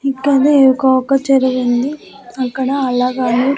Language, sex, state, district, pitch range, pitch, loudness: Telugu, female, Andhra Pradesh, Annamaya, 255-275 Hz, 265 Hz, -14 LUFS